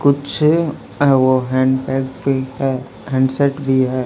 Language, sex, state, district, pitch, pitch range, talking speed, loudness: Hindi, male, Haryana, Charkhi Dadri, 130 Hz, 130-140 Hz, 135 wpm, -17 LUFS